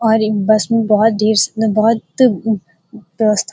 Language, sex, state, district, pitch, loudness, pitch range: Hindi, female, Uttar Pradesh, Gorakhpur, 215 Hz, -14 LUFS, 210-225 Hz